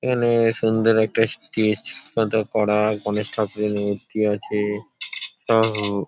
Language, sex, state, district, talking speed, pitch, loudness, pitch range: Bengali, male, West Bengal, Paschim Medinipur, 130 wpm, 110 Hz, -22 LUFS, 105-110 Hz